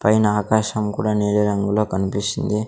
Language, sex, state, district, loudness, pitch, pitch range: Telugu, male, Andhra Pradesh, Sri Satya Sai, -20 LUFS, 105 Hz, 100-105 Hz